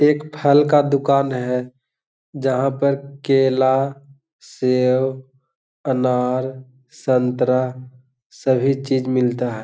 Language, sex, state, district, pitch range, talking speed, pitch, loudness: Hindi, male, Bihar, Gaya, 125-140 Hz, 100 wpm, 130 Hz, -19 LUFS